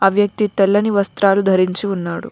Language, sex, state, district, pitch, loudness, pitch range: Telugu, female, Telangana, Mahabubabad, 195 Hz, -16 LUFS, 195-205 Hz